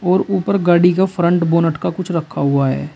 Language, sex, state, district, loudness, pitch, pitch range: Hindi, male, Uttar Pradesh, Shamli, -16 LUFS, 175 Hz, 165-185 Hz